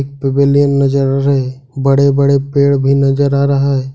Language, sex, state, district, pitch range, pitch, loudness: Hindi, male, Jharkhand, Ranchi, 135-140 Hz, 140 Hz, -12 LUFS